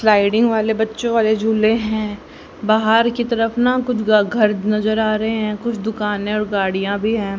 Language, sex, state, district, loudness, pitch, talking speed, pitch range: Hindi, female, Haryana, Rohtak, -18 LUFS, 220 Hz, 195 wpm, 210-225 Hz